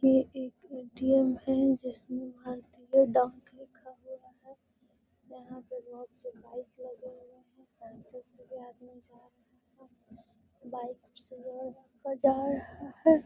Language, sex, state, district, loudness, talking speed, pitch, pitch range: Hindi, female, Bihar, Gaya, -31 LUFS, 145 wpm, 255 Hz, 245-265 Hz